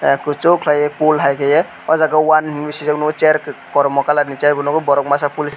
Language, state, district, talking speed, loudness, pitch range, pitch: Kokborok, Tripura, West Tripura, 225 wpm, -15 LUFS, 145-155 Hz, 150 Hz